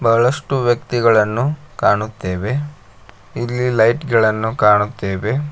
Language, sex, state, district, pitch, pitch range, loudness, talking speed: Kannada, male, Karnataka, Koppal, 115 Hz, 105-130 Hz, -17 LUFS, 75 wpm